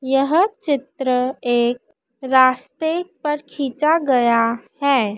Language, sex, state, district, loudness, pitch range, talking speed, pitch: Hindi, female, Madhya Pradesh, Dhar, -19 LUFS, 245-300 Hz, 95 wpm, 265 Hz